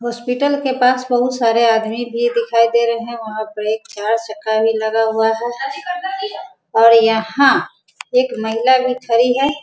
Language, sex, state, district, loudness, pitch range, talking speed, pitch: Hindi, female, Bihar, Sitamarhi, -16 LUFS, 225-255 Hz, 160 wpm, 235 Hz